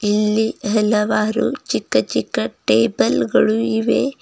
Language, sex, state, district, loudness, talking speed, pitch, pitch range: Kannada, female, Karnataka, Bidar, -18 LUFS, 100 wpm, 220 Hz, 210-225 Hz